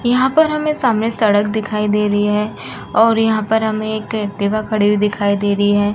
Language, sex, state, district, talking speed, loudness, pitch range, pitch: Hindi, female, Uttar Pradesh, Muzaffarnagar, 210 wpm, -16 LUFS, 205-225 Hz, 215 Hz